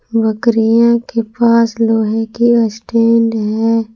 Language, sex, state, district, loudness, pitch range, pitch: Hindi, female, Jharkhand, Palamu, -13 LUFS, 225-230 Hz, 230 Hz